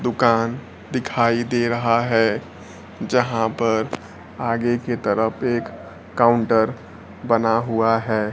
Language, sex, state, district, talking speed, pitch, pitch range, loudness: Hindi, male, Bihar, Kaimur, 110 wpm, 115 Hz, 110-120 Hz, -20 LUFS